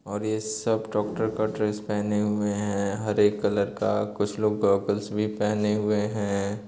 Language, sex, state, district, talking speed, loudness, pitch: Hindi, male, Uttar Pradesh, Gorakhpur, 170 wpm, -26 LUFS, 105 Hz